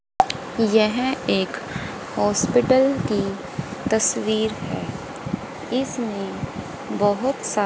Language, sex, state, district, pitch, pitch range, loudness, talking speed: Hindi, female, Haryana, Rohtak, 225 Hz, 215-260 Hz, -23 LUFS, 70 wpm